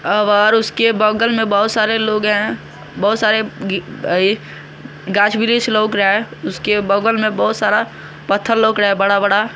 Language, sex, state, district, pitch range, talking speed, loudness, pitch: Hindi, male, Bihar, West Champaran, 200-220 Hz, 165 wpm, -15 LUFS, 210 Hz